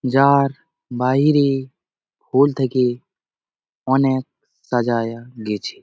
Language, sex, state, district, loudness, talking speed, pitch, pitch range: Bengali, male, West Bengal, Jalpaiguri, -19 LUFS, 80 wpm, 130 Hz, 125-140 Hz